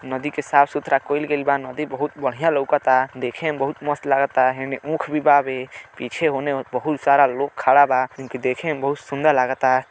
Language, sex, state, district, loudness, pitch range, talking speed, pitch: Bhojpuri, male, Uttar Pradesh, Deoria, -20 LUFS, 130-150 Hz, 200 wpm, 140 Hz